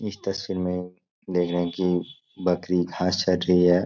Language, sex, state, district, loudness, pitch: Hindi, male, Bihar, Supaul, -25 LUFS, 90 Hz